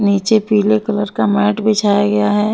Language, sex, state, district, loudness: Hindi, female, Haryana, Jhajjar, -14 LUFS